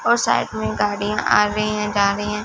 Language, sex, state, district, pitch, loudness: Hindi, female, Punjab, Fazilka, 205 Hz, -19 LUFS